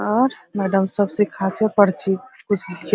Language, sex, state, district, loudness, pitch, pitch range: Hindi, female, Bihar, Araria, -20 LUFS, 205 Hz, 190-210 Hz